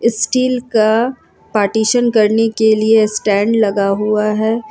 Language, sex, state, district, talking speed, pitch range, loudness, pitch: Hindi, female, Jharkhand, Ranchi, 130 wpm, 215-230 Hz, -14 LUFS, 220 Hz